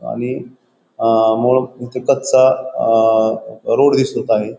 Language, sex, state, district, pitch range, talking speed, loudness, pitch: Marathi, male, Maharashtra, Pune, 110-130 Hz, 115 wpm, -15 LUFS, 125 Hz